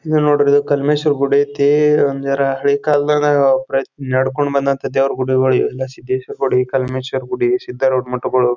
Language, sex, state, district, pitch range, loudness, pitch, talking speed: Kannada, male, Karnataka, Bijapur, 130-145 Hz, -16 LUFS, 140 Hz, 125 wpm